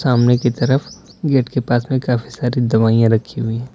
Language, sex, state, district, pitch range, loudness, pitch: Hindi, male, Uttar Pradesh, Lalitpur, 115-130 Hz, -17 LUFS, 120 Hz